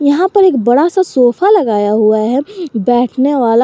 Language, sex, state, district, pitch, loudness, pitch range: Hindi, male, Jharkhand, Garhwa, 260 Hz, -11 LUFS, 240-350 Hz